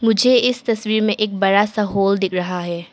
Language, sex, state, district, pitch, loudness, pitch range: Hindi, male, Arunachal Pradesh, Papum Pare, 210 Hz, -18 LUFS, 195-220 Hz